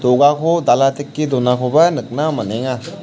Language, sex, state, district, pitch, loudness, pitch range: Garo, male, Meghalaya, South Garo Hills, 140 Hz, -16 LUFS, 125-155 Hz